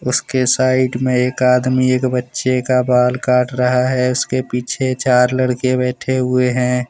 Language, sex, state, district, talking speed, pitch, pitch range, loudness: Hindi, male, Jharkhand, Deoghar, 165 wpm, 125 Hz, 125-130 Hz, -16 LUFS